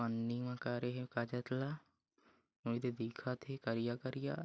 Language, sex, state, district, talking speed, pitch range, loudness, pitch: Chhattisgarhi, male, Chhattisgarh, Bilaspur, 120 wpm, 120-130 Hz, -41 LUFS, 125 Hz